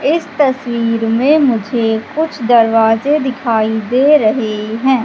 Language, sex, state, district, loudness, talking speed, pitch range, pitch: Hindi, female, Madhya Pradesh, Katni, -13 LUFS, 120 wpm, 225-280 Hz, 240 Hz